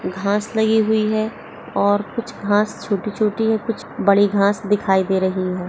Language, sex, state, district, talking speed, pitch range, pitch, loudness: Hindi, female, Uttar Pradesh, Etah, 170 wpm, 200-220 Hz, 205 Hz, -19 LUFS